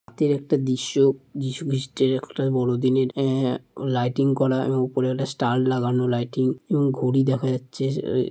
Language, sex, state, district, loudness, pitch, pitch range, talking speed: Bengali, male, West Bengal, Malda, -23 LUFS, 130 Hz, 130-135 Hz, 150 wpm